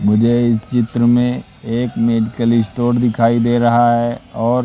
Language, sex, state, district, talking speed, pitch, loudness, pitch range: Hindi, male, Madhya Pradesh, Katni, 155 wpm, 120 Hz, -15 LUFS, 115-120 Hz